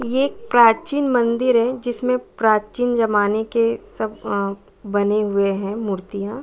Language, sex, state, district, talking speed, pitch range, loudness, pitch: Hindi, female, Bihar, Saran, 130 wpm, 205-245 Hz, -20 LUFS, 225 Hz